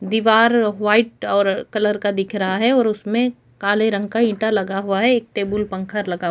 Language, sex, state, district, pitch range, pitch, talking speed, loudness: Hindi, female, Chhattisgarh, Kabirdham, 200-225 Hz, 210 Hz, 210 wpm, -19 LUFS